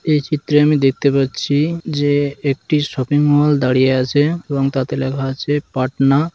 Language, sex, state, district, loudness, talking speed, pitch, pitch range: Bengali, male, West Bengal, Malda, -17 LUFS, 160 wpm, 145 Hz, 135-150 Hz